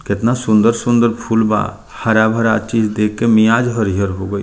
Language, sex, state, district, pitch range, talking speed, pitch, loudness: Bhojpuri, male, Bihar, Muzaffarpur, 105-115 Hz, 160 wpm, 110 Hz, -15 LUFS